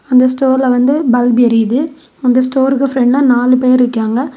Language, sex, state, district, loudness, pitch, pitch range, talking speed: Tamil, female, Tamil Nadu, Kanyakumari, -12 LUFS, 255 Hz, 245-270 Hz, 150 wpm